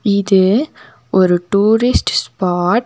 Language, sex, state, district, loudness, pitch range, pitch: Tamil, female, Tamil Nadu, Nilgiris, -14 LUFS, 185-225 Hz, 200 Hz